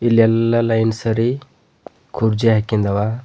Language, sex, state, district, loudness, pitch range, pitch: Kannada, male, Karnataka, Bidar, -17 LUFS, 110-115 Hz, 115 Hz